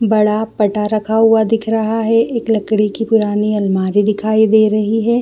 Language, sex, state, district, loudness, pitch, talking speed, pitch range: Hindi, female, Jharkhand, Jamtara, -14 LUFS, 220 Hz, 185 wpm, 210-225 Hz